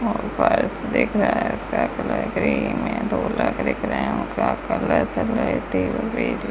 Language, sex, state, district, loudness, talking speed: Hindi, female, Rajasthan, Bikaner, -22 LUFS, 165 wpm